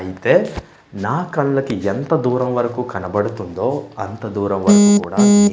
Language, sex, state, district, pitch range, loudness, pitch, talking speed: Telugu, male, Andhra Pradesh, Manyam, 100-160 Hz, -17 LUFS, 120 Hz, 130 wpm